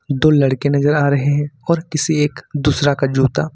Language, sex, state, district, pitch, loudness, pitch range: Hindi, male, Jharkhand, Ranchi, 145 Hz, -16 LUFS, 140-150 Hz